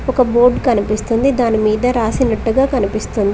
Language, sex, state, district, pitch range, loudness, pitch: Telugu, female, Telangana, Mahabubabad, 215-250 Hz, -15 LUFS, 230 Hz